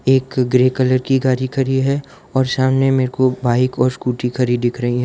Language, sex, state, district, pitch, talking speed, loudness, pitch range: Hindi, male, Gujarat, Valsad, 130 Hz, 215 wpm, -17 LUFS, 125-130 Hz